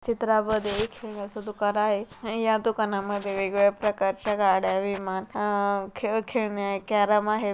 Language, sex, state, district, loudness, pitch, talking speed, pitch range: Marathi, female, Maharashtra, Pune, -26 LUFS, 210 Hz, 125 wpm, 200-215 Hz